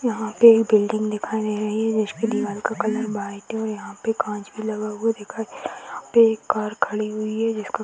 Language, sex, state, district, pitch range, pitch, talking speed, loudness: Hindi, female, Bihar, Jahanabad, 210-225 Hz, 215 Hz, 250 wpm, -22 LUFS